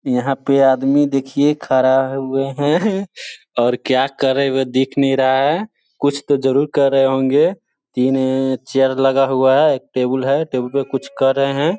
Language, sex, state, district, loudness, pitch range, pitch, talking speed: Hindi, male, Bihar, Sitamarhi, -16 LUFS, 130-140 Hz, 135 Hz, 185 wpm